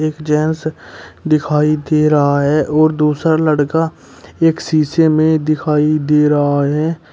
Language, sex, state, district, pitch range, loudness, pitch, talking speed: Hindi, male, Uttar Pradesh, Shamli, 150-155 Hz, -14 LUFS, 155 Hz, 135 wpm